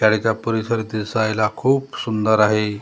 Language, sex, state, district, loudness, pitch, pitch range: Marathi, male, Maharashtra, Gondia, -19 LUFS, 110 Hz, 110-115 Hz